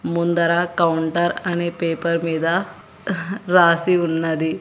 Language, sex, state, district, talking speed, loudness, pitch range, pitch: Telugu, male, Telangana, Hyderabad, 90 wpm, -19 LUFS, 165-175 Hz, 170 Hz